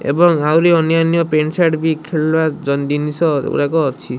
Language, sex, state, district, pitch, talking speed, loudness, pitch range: Odia, male, Odisha, Malkangiri, 160 Hz, 155 wpm, -15 LUFS, 150-165 Hz